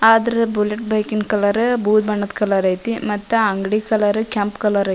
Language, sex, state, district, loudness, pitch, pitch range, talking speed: Kannada, female, Karnataka, Dharwad, -18 LUFS, 210 Hz, 205-220 Hz, 195 wpm